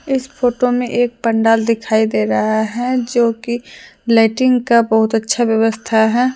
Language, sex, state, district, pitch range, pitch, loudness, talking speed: Hindi, female, Jharkhand, Deoghar, 220-245 Hz, 230 Hz, -15 LUFS, 160 wpm